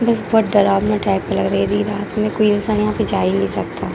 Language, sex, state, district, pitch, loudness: Hindi, female, Jharkhand, Jamtara, 205 Hz, -17 LUFS